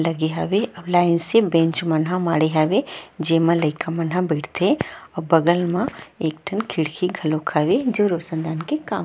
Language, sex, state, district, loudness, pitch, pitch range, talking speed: Chhattisgarhi, female, Chhattisgarh, Rajnandgaon, -21 LUFS, 165 Hz, 160-180 Hz, 185 wpm